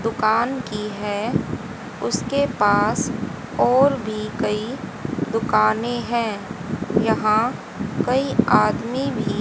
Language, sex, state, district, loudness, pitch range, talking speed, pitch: Hindi, female, Haryana, Charkhi Dadri, -21 LUFS, 210-240 Hz, 90 wpm, 220 Hz